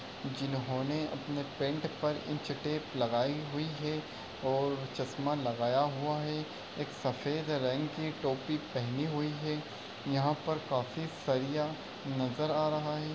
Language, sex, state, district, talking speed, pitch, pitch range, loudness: Hindi, male, Uttar Pradesh, Varanasi, 135 wpm, 145 Hz, 135-150 Hz, -35 LUFS